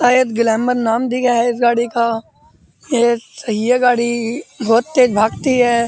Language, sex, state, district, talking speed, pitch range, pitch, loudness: Hindi, male, Uttar Pradesh, Muzaffarnagar, 165 wpm, 230-250 Hz, 240 Hz, -16 LUFS